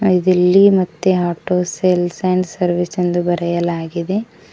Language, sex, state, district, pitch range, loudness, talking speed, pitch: Kannada, female, Karnataka, Koppal, 175-185 Hz, -16 LUFS, 105 wpm, 180 Hz